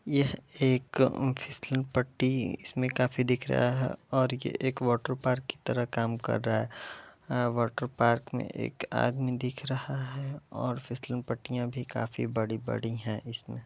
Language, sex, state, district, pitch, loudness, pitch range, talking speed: Hindi, male, Uttar Pradesh, Varanasi, 125 Hz, -31 LUFS, 120-130 Hz, 160 wpm